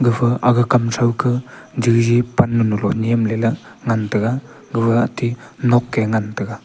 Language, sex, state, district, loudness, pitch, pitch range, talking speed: Wancho, male, Arunachal Pradesh, Longding, -18 LUFS, 120 Hz, 115-125 Hz, 160 wpm